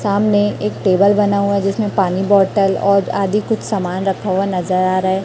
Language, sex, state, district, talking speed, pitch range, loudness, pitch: Hindi, female, Chhattisgarh, Raipur, 205 wpm, 190-205 Hz, -16 LUFS, 195 Hz